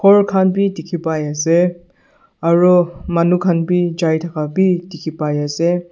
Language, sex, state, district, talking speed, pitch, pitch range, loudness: Nagamese, male, Nagaland, Dimapur, 120 wpm, 175 Hz, 165-180 Hz, -16 LUFS